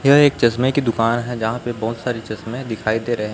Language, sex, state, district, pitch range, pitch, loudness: Hindi, male, Chhattisgarh, Raipur, 115-125 Hz, 120 Hz, -20 LUFS